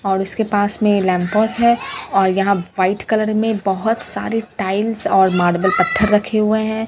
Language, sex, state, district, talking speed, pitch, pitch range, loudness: Hindi, female, Bihar, Katihar, 175 wpm, 210 Hz, 190-220 Hz, -17 LUFS